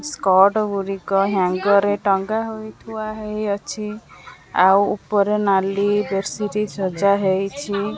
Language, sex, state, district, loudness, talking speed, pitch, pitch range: Odia, female, Odisha, Khordha, -20 LUFS, 90 wpm, 200 Hz, 195-210 Hz